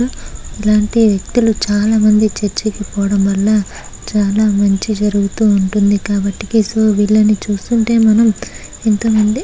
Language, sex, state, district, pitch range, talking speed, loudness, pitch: Telugu, male, Andhra Pradesh, Srikakulam, 205-220 Hz, 100 wpm, -14 LUFS, 210 Hz